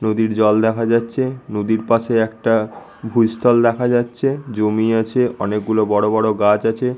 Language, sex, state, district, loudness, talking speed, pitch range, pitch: Bengali, male, West Bengal, Malda, -17 LUFS, 155 wpm, 110-120 Hz, 115 Hz